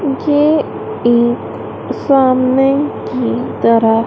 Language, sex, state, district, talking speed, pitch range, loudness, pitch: Hindi, female, Madhya Pradesh, Dhar, 75 wpm, 235-290 Hz, -14 LUFS, 265 Hz